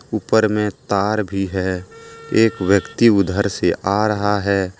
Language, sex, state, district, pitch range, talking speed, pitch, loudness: Hindi, male, Jharkhand, Deoghar, 95-110 Hz, 150 wpm, 100 Hz, -18 LUFS